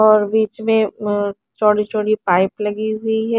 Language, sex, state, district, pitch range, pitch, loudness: Hindi, female, Haryana, Charkhi Dadri, 210-220 Hz, 215 Hz, -18 LUFS